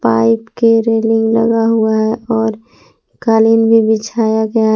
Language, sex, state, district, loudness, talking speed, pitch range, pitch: Hindi, female, Jharkhand, Palamu, -13 LUFS, 150 wpm, 220-225 Hz, 225 Hz